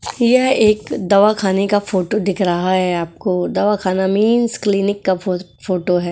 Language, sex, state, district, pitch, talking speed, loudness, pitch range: Hindi, female, Uttar Pradesh, Etah, 195 Hz, 165 wpm, -16 LUFS, 185-210 Hz